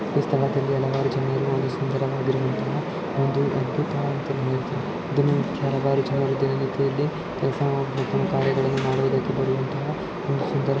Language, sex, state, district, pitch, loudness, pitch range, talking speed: Kannada, male, Karnataka, Shimoga, 135 Hz, -24 LUFS, 135-140 Hz, 135 wpm